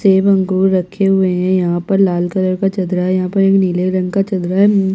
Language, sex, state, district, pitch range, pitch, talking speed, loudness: Hindi, female, Chhattisgarh, Jashpur, 185-195 Hz, 190 Hz, 230 wpm, -14 LUFS